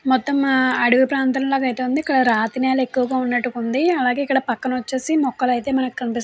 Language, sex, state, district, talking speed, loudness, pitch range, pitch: Telugu, female, Andhra Pradesh, Chittoor, 180 wpm, -19 LUFS, 250-270 Hz, 260 Hz